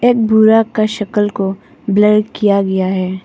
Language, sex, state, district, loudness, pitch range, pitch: Hindi, female, Arunachal Pradesh, Papum Pare, -13 LUFS, 195-220 Hz, 210 Hz